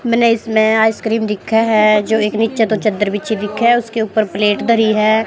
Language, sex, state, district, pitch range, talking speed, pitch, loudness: Hindi, female, Haryana, Jhajjar, 215-225 Hz, 195 wpm, 220 Hz, -14 LUFS